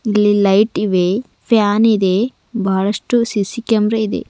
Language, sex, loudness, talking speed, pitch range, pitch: Kannada, female, -16 LUFS, 125 wpm, 200-225 Hz, 210 Hz